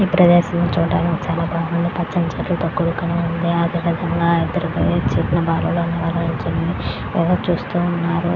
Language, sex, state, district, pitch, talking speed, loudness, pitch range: Telugu, female, Andhra Pradesh, Krishna, 170 Hz, 65 wpm, -19 LUFS, 170-175 Hz